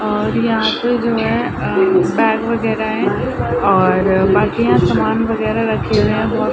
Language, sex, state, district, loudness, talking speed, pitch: Hindi, female, Bihar, Saran, -15 LUFS, 175 wpm, 210 Hz